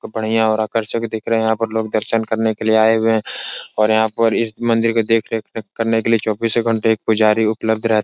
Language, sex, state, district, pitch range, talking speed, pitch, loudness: Hindi, male, Uttar Pradesh, Etah, 110-115 Hz, 255 wpm, 110 Hz, -17 LUFS